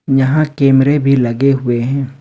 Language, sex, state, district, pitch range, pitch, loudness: Hindi, male, Jharkhand, Ranchi, 130-140 Hz, 135 Hz, -13 LUFS